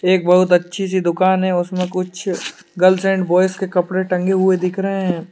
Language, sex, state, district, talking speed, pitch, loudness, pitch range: Hindi, male, Uttar Pradesh, Hamirpur, 205 wpm, 185 Hz, -17 LUFS, 180-190 Hz